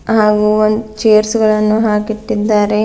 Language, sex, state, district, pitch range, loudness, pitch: Kannada, female, Karnataka, Bidar, 210-220 Hz, -13 LUFS, 215 Hz